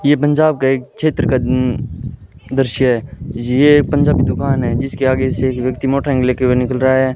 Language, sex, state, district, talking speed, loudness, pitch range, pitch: Hindi, male, Rajasthan, Bikaner, 210 wpm, -15 LUFS, 125-140 Hz, 130 Hz